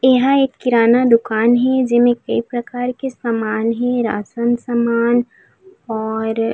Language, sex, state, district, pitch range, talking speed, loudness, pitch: Chhattisgarhi, female, Chhattisgarh, Raigarh, 230-250 Hz, 130 wpm, -17 LUFS, 240 Hz